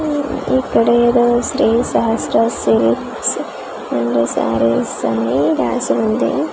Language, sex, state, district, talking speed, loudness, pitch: Telugu, female, Andhra Pradesh, Manyam, 100 wpm, -16 LUFS, 230 Hz